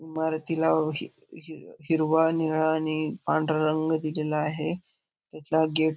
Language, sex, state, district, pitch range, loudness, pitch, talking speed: Marathi, male, Maharashtra, Aurangabad, 155-160 Hz, -26 LUFS, 160 Hz, 140 wpm